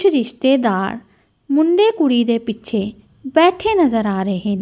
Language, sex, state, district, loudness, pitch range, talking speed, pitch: Punjabi, female, Punjab, Kapurthala, -17 LUFS, 215-320 Hz, 130 wpm, 240 Hz